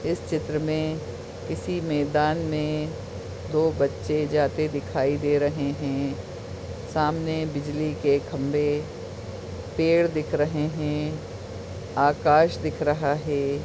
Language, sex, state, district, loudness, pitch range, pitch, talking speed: Hindi, male, Chhattisgarh, Bastar, -25 LUFS, 130-155 Hz, 145 Hz, 110 wpm